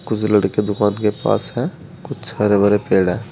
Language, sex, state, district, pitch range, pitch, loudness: Hindi, male, Uttar Pradesh, Saharanpur, 100-105 Hz, 105 Hz, -18 LUFS